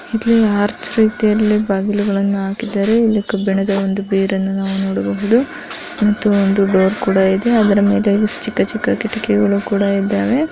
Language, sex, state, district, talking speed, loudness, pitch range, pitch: Kannada, female, Karnataka, Dharwad, 135 wpm, -16 LUFS, 195-220 Hz, 205 Hz